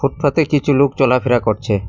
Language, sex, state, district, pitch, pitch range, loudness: Bengali, male, West Bengal, Cooch Behar, 135 Hz, 120-145 Hz, -16 LUFS